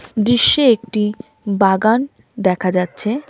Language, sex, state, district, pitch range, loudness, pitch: Bengali, female, West Bengal, Cooch Behar, 195-240 Hz, -16 LUFS, 215 Hz